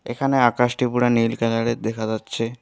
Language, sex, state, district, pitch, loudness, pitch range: Bengali, male, West Bengal, Alipurduar, 120 Hz, -21 LUFS, 115-125 Hz